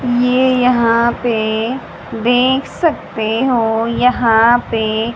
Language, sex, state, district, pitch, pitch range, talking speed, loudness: Hindi, female, Haryana, Jhajjar, 235 Hz, 225-250 Hz, 95 wpm, -14 LUFS